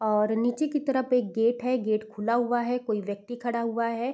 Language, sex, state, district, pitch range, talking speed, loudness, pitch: Hindi, female, Bihar, East Champaran, 220-245 Hz, 230 wpm, -27 LUFS, 235 Hz